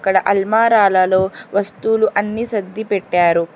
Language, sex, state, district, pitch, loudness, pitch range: Telugu, female, Telangana, Hyderabad, 200 Hz, -16 LUFS, 190-220 Hz